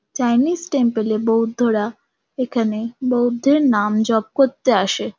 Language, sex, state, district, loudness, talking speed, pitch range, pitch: Bengali, female, West Bengal, Kolkata, -18 LUFS, 115 wpm, 225-260 Hz, 240 Hz